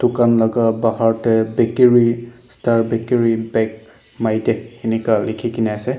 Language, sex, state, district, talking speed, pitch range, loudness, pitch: Nagamese, male, Nagaland, Dimapur, 120 wpm, 110-120 Hz, -17 LUFS, 115 Hz